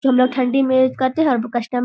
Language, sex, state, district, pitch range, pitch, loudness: Hindi, female, Bihar, Darbhanga, 250-260 Hz, 260 Hz, -17 LUFS